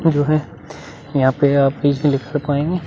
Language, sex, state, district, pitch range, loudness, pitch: Hindi, male, Uttar Pradesh, Budaun, 140-150 Hz, -18 LUFS, 145 Hz